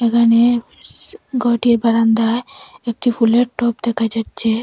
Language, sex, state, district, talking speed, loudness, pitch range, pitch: Bengali, female, Assam, Hailakandi, 130 wpm, -16 LUFS, 230-240 Hz, 235 Hz